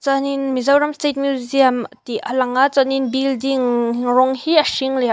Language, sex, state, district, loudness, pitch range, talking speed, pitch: Mizo, female, Mizoram, Aizawl, -17 LUFS, 255-275 Hz, 200 wpm, 265 Hz